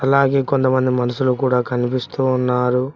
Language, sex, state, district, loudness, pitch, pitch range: Telugu, male, Telangana, Hyderabad, -18 LUFS, 130 Hz, 125-135 Hz